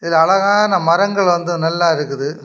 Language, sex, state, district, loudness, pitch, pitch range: Tamil, male, Tamil Nadu, Kanyakumari, -15 LUFS, 170 Hz, 160-195 Hz